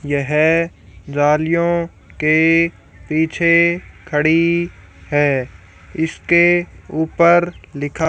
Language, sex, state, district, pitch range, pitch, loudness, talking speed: Hindi, female, Haryana, Charkhi Dadri, 145-170 Hz, 160 Hz, -16 LUFS, 65 wpm